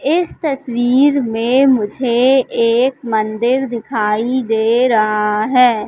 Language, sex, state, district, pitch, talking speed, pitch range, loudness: Hindi, female, Madhya Pradesh, Katni, 240 Hz, 100 wpm, 225-260 Hz, -15 LUFS